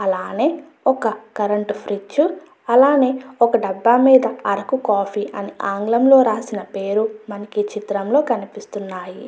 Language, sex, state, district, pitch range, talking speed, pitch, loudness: Telugu, female, Andhra Pradesh, Guntur, 205-260 Hz, 115 wpm, 215 Hz, -18 LUFS